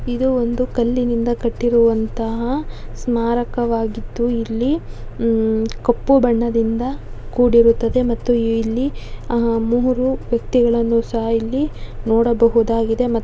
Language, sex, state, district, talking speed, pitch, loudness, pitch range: Kannada, female, Karnataka, Dakshina Kannada, 90 wpm, 235 Hz, -18 LUFS, 230-245 Hz